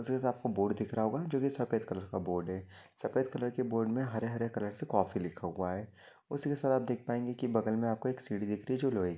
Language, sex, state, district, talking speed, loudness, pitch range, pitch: Hindi, male, Maharashtra, Solapur, 260 wpm, -35 LUFS, 105-130 Hz, 115 Hz